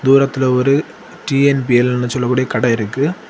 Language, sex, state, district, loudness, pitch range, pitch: Tamil, male, Tamil Nadu, Kanyakumari, -15 LUFS, 125-140 Hz, 130 Hz